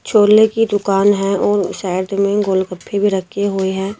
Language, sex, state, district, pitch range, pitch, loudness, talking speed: Hindi, female, Himachal Pradesh, Shimla, 190-205 Hz, 200 Hz, -16 LUFS, 180 wpm